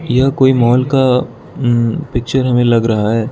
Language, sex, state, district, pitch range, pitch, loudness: Hindi, male, Arunachal Pradesh, Lower Dibang Valley, 120-130 Hz, 125 Hz, -13 LUFS